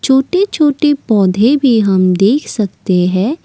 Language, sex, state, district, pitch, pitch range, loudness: Hindi, female, Assam, Kamrup Metropolitan, 235 Hz, 195-290 Hz, -12 LUFS